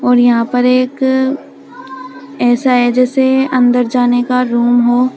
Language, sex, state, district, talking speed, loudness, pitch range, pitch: Hindi, female, Uttar Pradesh, Shamli, 140 wpm, -12 LUFS, 245-260 Hz, 250 Hz